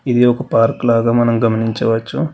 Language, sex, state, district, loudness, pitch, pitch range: Telugu, male, Telangana, Hyderabad, -15 LUFS, 115 Hz, 115-125 Hz